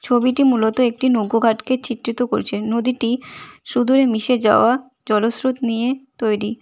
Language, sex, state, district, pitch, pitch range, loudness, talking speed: Bengali, female, West Bengal, Cooch Behar, 245 Hz, 225-255 Hz, -18 LUFS, 125 wpm